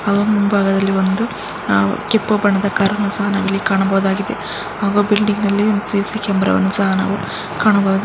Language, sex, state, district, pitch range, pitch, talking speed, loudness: Kannada, female, Karnataka, Mysore, 195-210 Hz, 200 Hz, 80 wpm, -17 LUFS